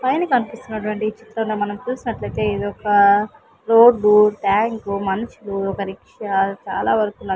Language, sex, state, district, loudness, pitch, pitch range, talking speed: Telugu, female, Andhra Pradesh, Sri Satya Sai, -19 LUFS, 210 Hz, 200-225 Hz, 115 wpm